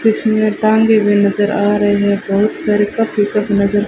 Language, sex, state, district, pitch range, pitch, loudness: Hindi, female, Rajasthan, Bikaner, 205-215 Hz, 205 Hz, -14 LUFS